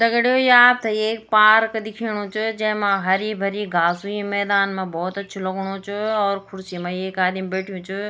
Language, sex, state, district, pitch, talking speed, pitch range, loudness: Garhwali, female, Uttarakhand, Tehri Garhwal, 200 Hz, 185 wpm, 190-215 Hz, -20 LUFS